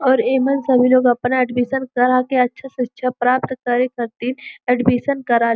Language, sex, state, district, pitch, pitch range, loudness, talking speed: Bhojpuri, female, Uttar Pradesh, Gorakhpur, 250 Hz, 245-260 Hz, -18 LUFS, 175 wpm